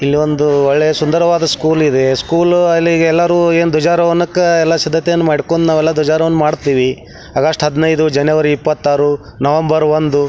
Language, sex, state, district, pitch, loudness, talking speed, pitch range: Kannada, male, Karnataka, Belgaum, 155 Hz, -13 LUFS, 140 wpm, 150-165 Hz